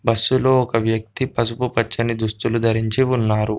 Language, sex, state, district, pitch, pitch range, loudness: Telugu, male, Telangana, Komaram Bheem, 115 Hz, 110-125 Hz, -20 LUFS